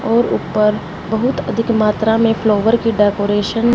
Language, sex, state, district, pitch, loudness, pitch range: Hindi, female, Punjab, Fazilka, 225 Hz, -16 LUFS, 210-230 Hz